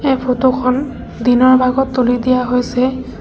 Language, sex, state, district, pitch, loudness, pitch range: Assamese, female, Assam, Sonitpur, 255 Hz, -14 LUFS, 250-260 Hz